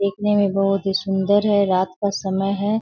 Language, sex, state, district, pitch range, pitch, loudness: Hindi, female, Bihar, Bhagalpur, 195-205 Hz, 195 Hz, -20 LUFS